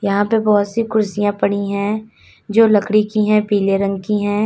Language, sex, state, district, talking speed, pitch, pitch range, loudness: Hindi, female, Uttar Pradesh, Lalitpur, 200 wpm, 210 Hz, 200-215 Hz, -17 LUFS